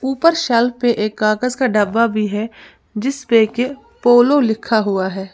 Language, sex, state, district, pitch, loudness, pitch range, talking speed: Hindi, female, Uttar Pradesh, Lalitpur, 230 Hz, -16 LUFS, 215-250 Hz, 180 wpm